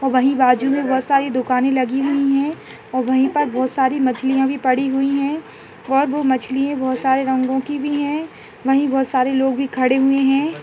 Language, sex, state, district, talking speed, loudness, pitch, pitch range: Hindi, female, Chhattisgarh, Bastar, 190 wpm, -18 LUFS, 270 Hz, 260-275 Hz